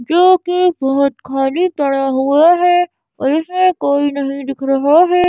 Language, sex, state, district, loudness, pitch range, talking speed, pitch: Hindi, female, Madhya Pradesh, Bhopal, -14 LUFS, 275-355 Hz, 160 wpm, 290 Hz